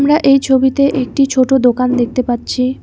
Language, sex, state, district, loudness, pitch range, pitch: Bengali, female, West Bengal, Alipurduar, -13 LUFS, 250-275 Hz, 265 Hz